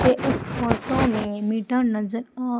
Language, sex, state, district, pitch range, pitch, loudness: Hindi, female, Madhya Pradesh, Umaria, 215-250 Hz, 230 Hz, -24 LUFS